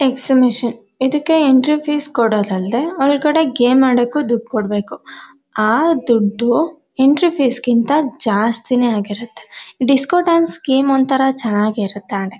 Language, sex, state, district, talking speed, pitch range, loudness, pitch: Kannada, female, Karnataka, Mysore, 110 wpm, 230-285 Hz, -15 LUFS, 260 Hz